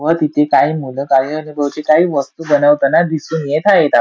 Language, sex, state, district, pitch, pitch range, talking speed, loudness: Marathi, male, Maharashtra, Sindhudurg, 150 Hz, 145-160 Hz, 135 wpm, -14 LUFS